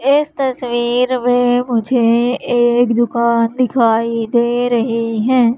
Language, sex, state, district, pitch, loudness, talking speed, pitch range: Hindi, female, Madhya Pradesh, Katni, 240 Hz, -15 LUFS, 110 wpm, 235-250 Hz